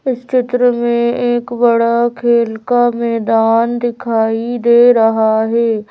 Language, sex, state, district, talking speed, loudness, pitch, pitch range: Hindi, female, Madhya Pradesh, Bhopal, 120 wpm, -13 LUFS, 235 Hz, 230-240 Hz